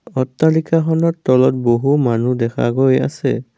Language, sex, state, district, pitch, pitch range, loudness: Assamese, male, Assam, Kamrup Metropolitan, 130 Hz, 125-160 Hz, -16 LUFS